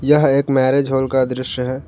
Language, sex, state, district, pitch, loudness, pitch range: Hindi, male, Jharkhand, Garhwa, 130 Hz, -16 LUFS, 130-140 Hz